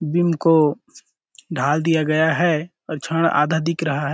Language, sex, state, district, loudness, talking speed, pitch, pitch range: Hindi, male, Chhattisgarh, Sarguja, -19 LUFS, 205 wpm, 160 Hz, 150-165 Hz